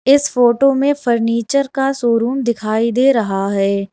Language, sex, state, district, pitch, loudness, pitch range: Hindi, female, Uttar Pradesh, Lalitpur, 240 Hz, -15 LUFS, 225-270 Hz